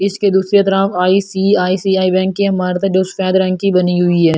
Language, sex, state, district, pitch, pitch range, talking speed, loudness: Hindi, female, Delhi, New Delhi, 190 Hz, 185-195 Hz, 205 wpm, -14 LUFS